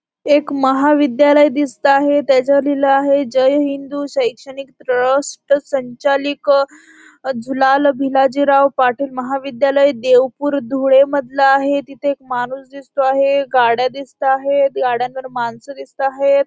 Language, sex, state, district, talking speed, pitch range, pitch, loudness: Marathi, female, Maharashtra, Dhule, 115 wpm, 265-280 Hz, 275 Hz, -15 LUFS